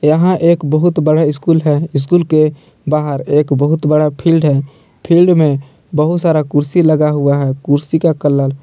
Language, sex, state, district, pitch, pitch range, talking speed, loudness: Hindi, male, Jharkhand, Palamu, 150 Hz, 145-165 Hz, 180 wpm, -13 LUFS